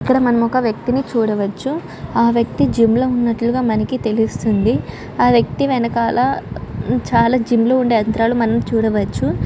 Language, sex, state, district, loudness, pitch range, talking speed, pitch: Telugu, female, Andhra Pradesh, Chittoor, -17 LUFS, 225-245 Hz, 140 wpm, 235 Hz